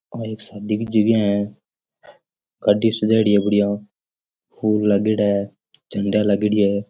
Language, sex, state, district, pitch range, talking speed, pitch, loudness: Rajasthani, male, Rajasthan, Nagaur, 100-110 Hz, 140 wpm, 105 Hz, -19 LUFS